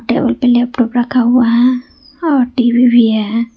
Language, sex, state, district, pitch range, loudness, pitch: Hindi, female, Jharkhand, Ranchi, 240-255 Hz, -12 LUFS, 245 Hz